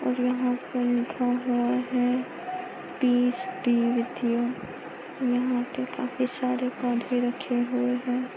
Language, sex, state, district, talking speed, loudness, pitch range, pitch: Hindi, female, Maharashtra, Pune, 105 wpm, -27 LUFS, 245-255 Hz, 250 Hz